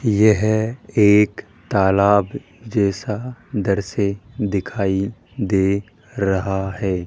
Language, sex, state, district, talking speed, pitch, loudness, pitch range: Hindi, male, Rajasthan, Jaipur, 85 wpm, 100 Hz, -19 LUFS, 95-110 Hz